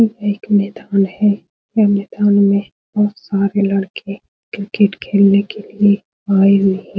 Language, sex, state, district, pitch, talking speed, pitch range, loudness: Hindi, female, Bihar, Supaul, 200 Hz, 155 wpm, 200-210 Hz, -15 LUFS